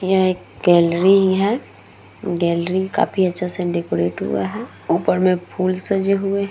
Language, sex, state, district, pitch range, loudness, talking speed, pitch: Hindi, female, Uttar Pradesh, Muzaffarnagar, 175-195 Hz, -18 LUFS, 155 wpm, 185 Hz